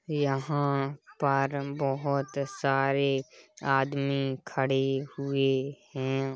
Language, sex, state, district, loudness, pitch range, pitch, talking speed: Hindi, female, Uttar Pradesh, Hamirpur, -29 LUFS, 135-140 Hz, 140 Hz, 75 wpm